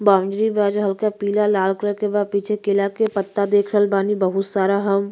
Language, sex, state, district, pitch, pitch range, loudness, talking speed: Bhojpuri, female, Uttar Pradesh, Ghazipur, 200 Hz, 200-210 Hz, -20 LUFS, 225 wpm